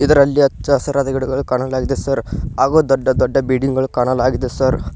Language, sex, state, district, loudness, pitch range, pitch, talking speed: Kannada, male, Karnataka, Koppal, -16 LUFS, 130-140 Hz, 135 Hz, 170 wpm